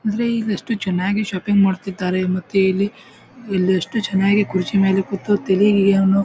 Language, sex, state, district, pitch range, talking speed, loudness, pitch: Kannada, male, Karnataka, Bijapur, 190-205 Hz, 145 wpm, -19 LUFS, 195 Hz